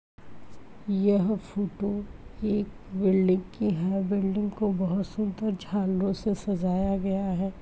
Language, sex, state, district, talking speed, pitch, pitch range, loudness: Hindi, female, Uttar Pradesh, Muzaffarnagar, 120 wpm, 195 Hz, 190-205 Hz, -28 LUFS